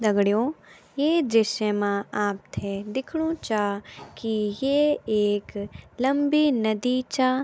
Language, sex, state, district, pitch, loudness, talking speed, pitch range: Garhwali, female, Uttarakhand, Tehri Garhwal, 225 Hz, -25 LUFS, 105 wpm, 205-275 Hz